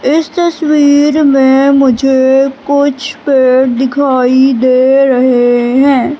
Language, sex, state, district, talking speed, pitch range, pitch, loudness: Hindi, female, Madhya Pradesh, Katni, 95 wpm, 260-285 Hz, 270 Hz, -9 LUFS